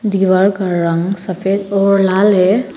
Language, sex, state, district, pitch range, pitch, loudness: Hindi, female, Arunachal Pradesh, Papum Pare, 185-200 Hz, 195 Hz, -14 LUFS